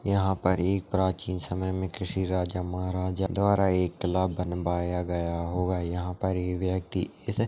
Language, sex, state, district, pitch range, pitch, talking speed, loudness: Hindi, male, Chhattisgarh, Rajnandgaon, 90-95 Hz, 90 Hz, 145 wpm, -28 LUFS